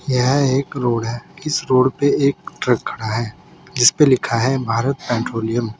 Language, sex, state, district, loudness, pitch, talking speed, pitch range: Hindi, male, Uttar Pradesh, Saharanpur, -18 LUFS, 130 Hz, 175 wpm, 115-140 Hz